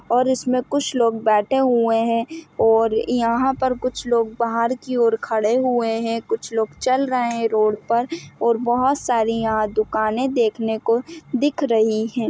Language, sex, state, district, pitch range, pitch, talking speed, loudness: Hindi, female, Chhattisgarh, Kabirdham, 225-255 Hz, 235 Hz, 170 wpm, -20 LUFS